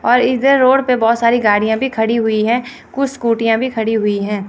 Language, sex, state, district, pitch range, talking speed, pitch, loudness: Hindi, female, Chandigarh, Chandigarh, 220-255 Hz, 225 wpm, 230 Hz, -15 LUFS